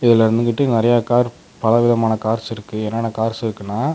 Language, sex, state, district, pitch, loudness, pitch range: Tamil, male, Tamil Nadu, Namakkal, 115 Hz, -18 LUFS, 110-120 Hz